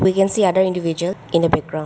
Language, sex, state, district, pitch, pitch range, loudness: English, female, Arunachal Pradesh, Lower Dibang Valley, 175 Hz, 165-190 Hz, -18 LUFS